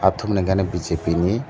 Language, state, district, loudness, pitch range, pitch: Kokborok, Tripura, Dhalai, -21 LUFS, 90-95 Hz, 95 Hz